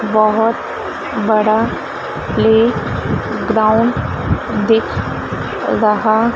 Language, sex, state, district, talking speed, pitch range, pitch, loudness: Hindi, female, Madhya Pradesh, Dhar, 45 wpm, 215-225 Hz, 220 Hz, -16 LUFS